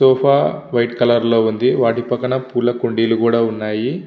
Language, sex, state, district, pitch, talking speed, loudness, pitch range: Telugu, male, Andhra Pradesh, Visakhapatnam, 120 Hz, 175 wpm, -16 LUFS, 115-125 Hz